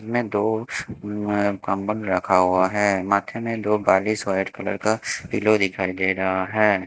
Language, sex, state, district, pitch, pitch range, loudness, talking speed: Hindi, male, Haryana, Jhajjar, 105 Hz, 95-110 Hz, -22 LUFS, 165 wpm